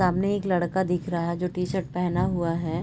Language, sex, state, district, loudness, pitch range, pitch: Hindi, female, Bihar, Sitamarhi, -26 LUFS, 170-185 Hz, 180 Hz